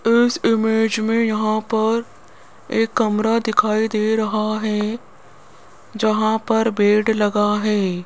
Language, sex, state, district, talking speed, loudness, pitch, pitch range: Hindi, female, Rajasthan, Jaipur, 120 wpm, -19 LUFS, 220 Hz, 215-225 Hz